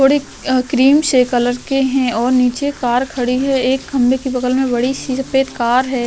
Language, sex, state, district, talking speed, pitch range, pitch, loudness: Hindi, female, Chhattisgarh, Korba, 205 wpm, 250-270 Hz, 260 Hz, -15 LUFS